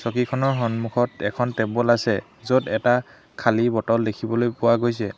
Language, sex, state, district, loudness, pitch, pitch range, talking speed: Assamese, male, Assam, Hailakandi, -22 LUFS, 120 Hz, 115-120 Hz, 140 wpm